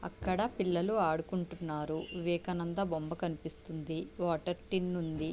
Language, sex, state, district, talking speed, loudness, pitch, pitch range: Telugu, female, Andhra Pradesh, Visakhapatnam, 100 wpm, -35 LUFS, 175 Hz, 160-180 Hz